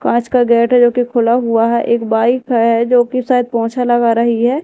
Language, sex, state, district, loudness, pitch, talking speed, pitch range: Hindi, female, Madhya Pradesh, Dhar, -13 LUFS, 235 Hz, 245 wpm, 230-245 Hz